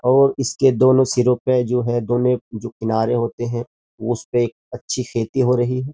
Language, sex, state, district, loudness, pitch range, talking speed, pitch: Hindi, male, Uttar Pradesh, Jyotiba Phule Nagar, -19 LUFS, 120-130 Hz, 180 wpm, 125 Hz